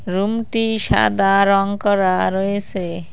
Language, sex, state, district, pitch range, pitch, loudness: Bengali, female, West Bengal, Cooch Behar, 190-205 Hz, 195 Hz, -18 LUFS